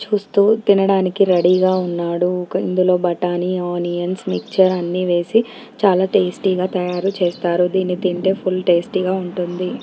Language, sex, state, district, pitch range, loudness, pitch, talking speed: Telugu, female, Telangana, Nalgonda, 180-190 Hz, -18 LUFS, 185 Hz, 135 wpm